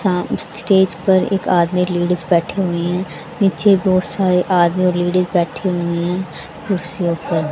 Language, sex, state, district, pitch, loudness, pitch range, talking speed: Hindi, female, Haryana, Jhajjar, 180 Hz, -17 LUFS, 170-190 Hz, 165 wpm